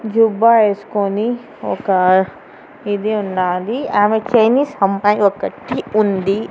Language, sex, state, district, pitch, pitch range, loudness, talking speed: Telugu, female, Andhra Pradesh, Annamaya, 210 Hz, 195-225 Hz, -16 LUFS, 90 wpm